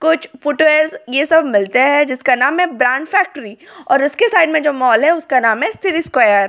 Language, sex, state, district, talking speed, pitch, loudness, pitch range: Hindi, female, Delhi, New Delhi, 220 wpm, 295 Hz, -14 LUFS, 255-325 Hz